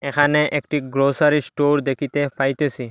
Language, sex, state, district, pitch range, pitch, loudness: Bengali, male, Assam, Hailakandi, 140-145 Hz, 145 Hz, -19 LUFS